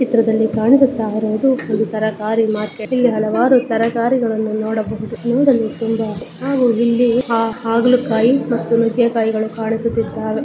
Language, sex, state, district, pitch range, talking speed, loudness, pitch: Kannada, female, Karnataka, Bellary, 220-240 Hz, 115 wpm, -17 LUFS, 225 Hz